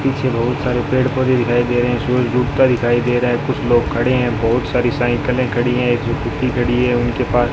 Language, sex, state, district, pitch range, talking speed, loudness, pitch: Hindi, male, Rajasthan, Bikaner, 120-125 Hz, 245 wpm, -17 LUFS, 120 Hz